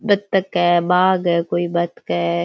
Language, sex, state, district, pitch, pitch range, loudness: Rajasthani, female, Rajasthan, Churu, 175 Hz, 170-185 Hz, -18 LUFS